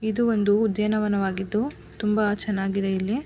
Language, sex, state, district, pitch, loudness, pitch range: Kannada, female, Karnataka, Mysore, 210 Hz, -24 LUFS, 195-220 Hz